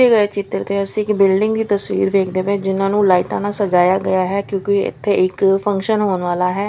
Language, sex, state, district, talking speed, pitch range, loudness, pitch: Punjabi, female, Chandigarh, Chandigarh, 225 wpm, 190-205 Hz, -17 LUFS, 195 Hz